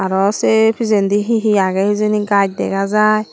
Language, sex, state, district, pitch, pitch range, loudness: Chakma, female, Tripura, Dhalai, 210 Hz, 195-215 Hz, -15 LUFS